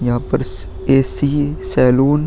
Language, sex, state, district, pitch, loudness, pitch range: Hindi, male, Bihar, Vaishali, 130 Hz, -16 LUFS, 120-145 Hz